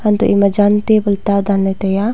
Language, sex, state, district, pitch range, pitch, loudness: Wancho, female, Arunachal Pradesh, Longding, 200-210 Hz, 200 Hz, -14 LUFS